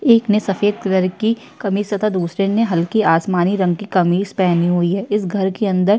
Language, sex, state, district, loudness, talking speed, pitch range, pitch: Hindi, female, Uttar Pradesh, Jyotiba Phule Nagar, -17 LUFS, 220 wpm, 180-210 Hz, 195 Hz